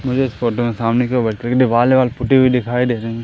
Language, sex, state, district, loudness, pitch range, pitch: Hindi, male, Madhya Pradesh, Umaria, -16 LUFS, 115-125 Hz, 125 Hz